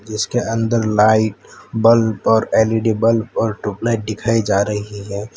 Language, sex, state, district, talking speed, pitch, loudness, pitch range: Hindi, male, Gujarat, Valsad, 145 wpm, 110 Hz, -17 LUFS, 105-115 Hz